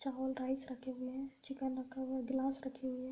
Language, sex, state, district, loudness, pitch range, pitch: Hindi, female, Uttar Pradesh, Deoria, -41 LUFS, 260-270 Hz, 265 Hz